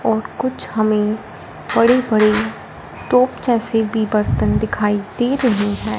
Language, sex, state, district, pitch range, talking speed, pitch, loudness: Hindi, female, Punjab, Fazilka, 210-240 Hz, 130 wpm, 220 Hz, -17 LUFS